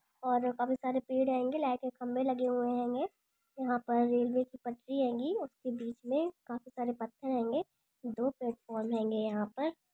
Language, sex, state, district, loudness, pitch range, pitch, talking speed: Hindi, female, Andhra Pradesh, Chittoor, -34 LUFS, 240-265 Hz, 250 Hz, 345 wpm